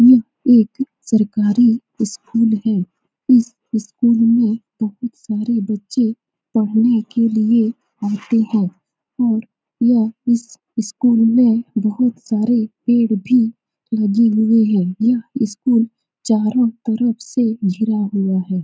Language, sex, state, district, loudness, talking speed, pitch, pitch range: Hindi, female, Bihar, Saran, -17 LUFS, 115 wpm, 225 Hz, 215-240 Hz